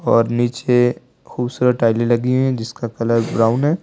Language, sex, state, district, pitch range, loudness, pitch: Hindi, male, Delhi, New Delhi, 115-125 Hz, -18 LUFS, 120 Hz